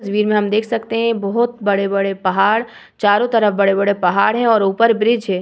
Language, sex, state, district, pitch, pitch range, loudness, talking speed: Hindi, female, Bihar, Vaishali, 210 Hz, 200-230 Hz, -16 LUFS, 200 wpm